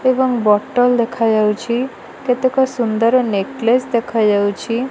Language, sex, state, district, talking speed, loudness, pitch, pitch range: Odia, female, Odisha, Malkangiri, 85 wpm, -16 LUFS, 235 Hz, 220-255 Hz